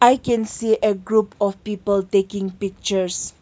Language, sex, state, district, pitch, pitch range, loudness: English, female, Nagaland, Kohima, 205 Hz, 195-220 Hz, -21 LUFS